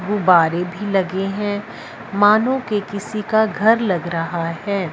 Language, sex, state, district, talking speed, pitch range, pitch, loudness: Hindi, female, Punjab, Fazilka, 145 wpm, 180-215 Hz, 200 Hz, -19 LUFS